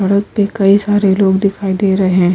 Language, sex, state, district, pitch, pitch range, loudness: Hindi, female, Uttar Pradesh, Hamirpur, 195 Hz, 190-200 Hz, -13 LUFS